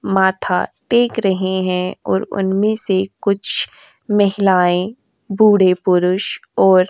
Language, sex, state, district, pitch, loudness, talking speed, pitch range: Hindi, female, Uttar Pradesh, Jyotiba Phule Nagar, 190 Hz, -16 LUFS, 115 wpm, 185-205 Hz